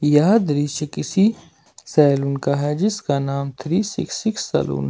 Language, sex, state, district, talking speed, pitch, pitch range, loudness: Hindi, male, Jharkhand, Ranchi, 145 wpm, 150 Hz, 140-195 Hz, -20 LUFS